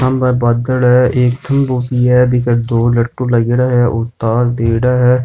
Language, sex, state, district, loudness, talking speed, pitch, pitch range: Rajasthani, male, Rajasthan, Nagaur, -13 LUFS, 170 wpm, 125 Hz, 120-125 Hz